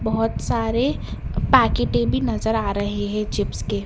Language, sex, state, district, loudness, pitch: Hindi, male, Karnataka, Bangalore, -22 LUFS, 205 Hz